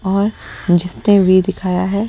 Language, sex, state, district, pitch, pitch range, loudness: Hindi, male, Delhi, New Delhi, 190 Hz, 185-200 Hz, -15 LUFS